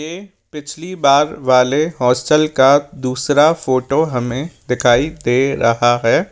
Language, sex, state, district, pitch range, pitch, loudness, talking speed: Hindi, male, Rajasthan, Jaipur, 125-155 Hz, 140 Hz, -15 LUFS, 125 wpm